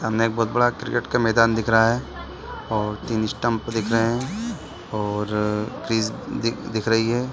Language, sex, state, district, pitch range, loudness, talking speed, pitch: Hindi, male, Chhattisgarh, Bilaspur, 110-120 Hz, -23 LUFS, 165 wpm, 115 Hz